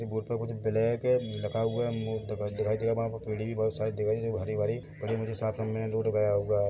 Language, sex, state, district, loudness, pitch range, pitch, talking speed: Hindi, male, Chhattisgarh, Bilaspur, -31 LUFS, 105-115 Hz, 110 Hz, 285 wpm